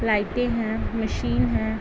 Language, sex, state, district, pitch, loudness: Hindi, female, Chhattisgarh, Bilaspur, 215 Hz, -25 LUFS